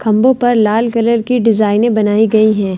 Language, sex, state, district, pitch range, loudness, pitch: Hindi, female, Bihar, Vaishali, 215-235 Hz, -12 LUFS, 225 Hz